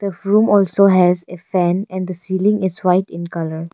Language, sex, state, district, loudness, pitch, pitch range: English, female, Arunachal Pradesh, Longding, -17 LUFS, 185 Hz, 175-195 Hz